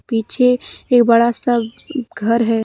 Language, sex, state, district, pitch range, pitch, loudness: Hindi, female, Jharkhand, Deoghar, 225-250 Hz, 235 Hz, -16 LUFS